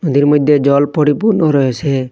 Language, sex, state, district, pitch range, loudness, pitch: Bengali, male, Assam, Hailakandi, 140-150 Hz, -12 LUFS, 145 Hz